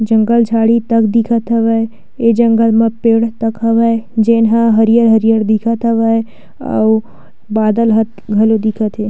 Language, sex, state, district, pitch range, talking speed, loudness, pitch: Chhattisgarhi, female, Chhattisgarh, Sukma, 220-230 Hz, 145 wpm, -12 LUFS, 225 Hz